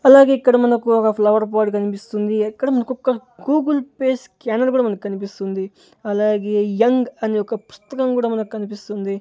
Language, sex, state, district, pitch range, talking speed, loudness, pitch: Telugu, male, Andhra Pradesh, Sri Satya Sai, 210-255 Hz, 150 wpm, -19 LUFS, 220 Hz